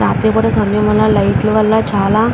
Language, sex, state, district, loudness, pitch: Telugu, female, Andhra Pradesh, Chittoor, -13 LUFS, 210 Hz